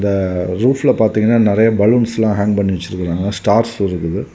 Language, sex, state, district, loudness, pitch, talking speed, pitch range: Tamil, male, Tamil Nadu, Kanyakumari, -15 LUFS, 100 Hz, 150 wpm, 95-110 Hz